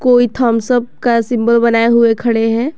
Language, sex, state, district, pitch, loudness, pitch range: Hindi, female, Jharkhand, Garhwa, 235 Hz, -13 LUFS, 230-245 Hz